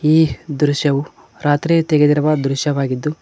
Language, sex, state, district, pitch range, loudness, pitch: Kannada, male, Karnataka, Koppal, 145-155 Hz, -17 LUFS, 145 Hz